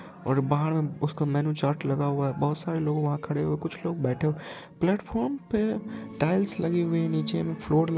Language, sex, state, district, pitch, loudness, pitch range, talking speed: Hindi, male, Bihar, Purnia, 150 Hz, -28 LUFS, 145-170 Hz, 205 wpm